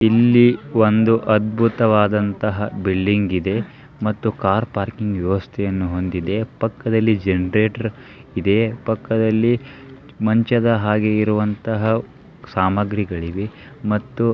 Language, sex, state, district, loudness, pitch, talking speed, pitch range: Kannada, male, Karnataka, Belgaum, -19 LUFS, 110 Hz, 85 wpm, 100-115 Hz